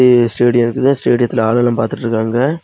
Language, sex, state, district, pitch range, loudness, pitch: Tamil, male, Tamil Nadu, Kanyakumari, 115-125 Hz, -14 LUFS, 120 Hz